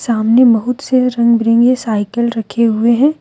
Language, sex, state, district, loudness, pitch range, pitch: Hindi, female, Jharkhand, Deoghar, -13 LUFS, 230-250 Hz, 235 Hz